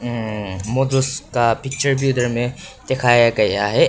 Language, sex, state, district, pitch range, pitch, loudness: Hindi, male, Nagaland, Kohima, 120-135 Hz, 125 Hz, -19 LUFS